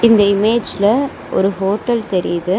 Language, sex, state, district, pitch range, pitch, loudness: Tamil, female, Tamil Nadu, Chennai, 195-230 Hz, 205 Hz, -16 LUFS